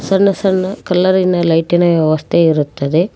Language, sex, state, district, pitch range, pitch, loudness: Kannada, female, Karnataka, Koppal, 160-185 Hz, 175 Hz, -13 LUFS